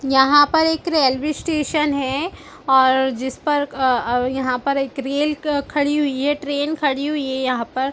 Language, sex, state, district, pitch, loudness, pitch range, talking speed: Hindi, female, Chhattisgarh, Balrampur, 280 Hz, -19 LUFS, 265-295 Hz, 190 wpm